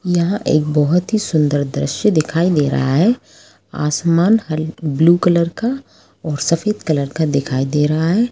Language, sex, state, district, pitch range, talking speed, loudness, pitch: Hindi, female, Jharkhand, Jamtara, 150-185 Hz, 165 wpm, -16 LUFS, 165 Hz